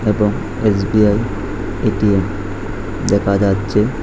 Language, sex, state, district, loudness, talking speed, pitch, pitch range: Bengali, male, Tripura, West Tripura, -17 LUFS, 75 wpm, 105 Hz, 100-105 Hz